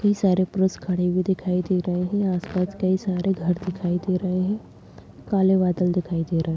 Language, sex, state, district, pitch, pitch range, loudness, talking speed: Kumaoni, female, Uttarakhand, Tehri Garhwal, 185 Hz, 180-190 Hz, -23 LUFS, 220 wpm